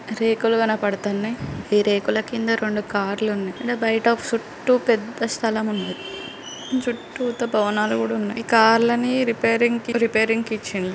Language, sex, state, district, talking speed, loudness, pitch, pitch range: Telugu, female, Andhra Pradesh, Srikakulam, 140 wpm, -21 LUFS, 225 Hz, 210-235 Hz